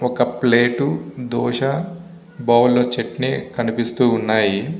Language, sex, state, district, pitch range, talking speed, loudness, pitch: Telugu, male, Andhra Pradesh, Visakhapatnam, 120-135 Hz, 100 wpm, -19 LUFS, 125 Hz